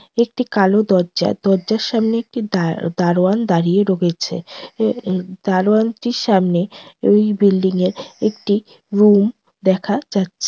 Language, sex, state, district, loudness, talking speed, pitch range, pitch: Bengali, female, West Bengal, North 24 Parganas, -17 LUFS, 115 wpm, 185-220 Hz, 200 Hz